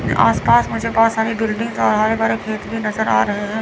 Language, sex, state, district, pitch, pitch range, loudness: Hindi, female, Chandigarh, Chandigarh, 220 Hz, 215-225 Hz, -17 LUFS